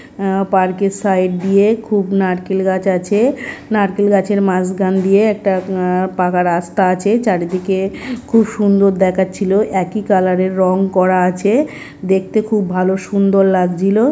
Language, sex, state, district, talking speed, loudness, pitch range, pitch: Bengali, male, West Bengal, North 24 Parganas, 140 wpm, -15 LUFS, 185-205 Hz, 190 Hz